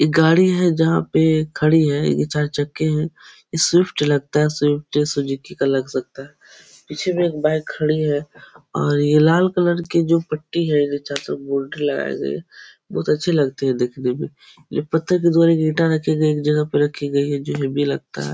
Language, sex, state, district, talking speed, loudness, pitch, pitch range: Hindi, male, Uttar Pradesh, Etah, 190 wpm, -19 LUFS, 150 Hz, 145-160 Hz